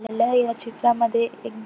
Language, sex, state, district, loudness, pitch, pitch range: Marathi, female, Maharashtra, Aurangabad, -22 LUFS, 230 Hz, 230-235 Hz